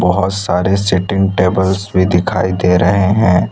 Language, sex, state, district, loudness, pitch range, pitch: Hindi, male, Gujarat, Valsad, -13 LUFS, 90-95 Hz, 95 Hz